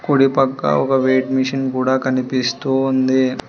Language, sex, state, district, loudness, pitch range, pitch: Telugu, male, Telangana, Hyderabad, -17 LUFS, 130-135 Hz, 130 Hz